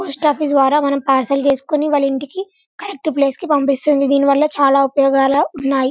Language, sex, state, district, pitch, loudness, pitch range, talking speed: Telugu, female, Telangana, Karimnagar, 280 Hz, -15 LUFS, 275-300 Hz, 175 wpm